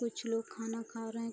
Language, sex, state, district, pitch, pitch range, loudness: Hindi, female, Bihar, Araria, 230 Hz, 225-230 Hz, -39 LUFS